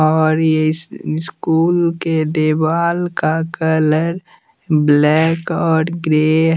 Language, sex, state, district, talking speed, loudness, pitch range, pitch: Hindi, male, Bihar, West Champaran, 100 wpm, -16 LUFS, 155-170 Hz, 160 Hz